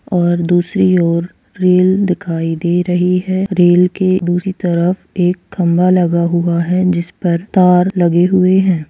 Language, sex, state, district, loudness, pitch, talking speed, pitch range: Hindi, female, Bihar, Gopalganj, -13 LUFS, 180 Hz, 150 wpm, 175-185 Hz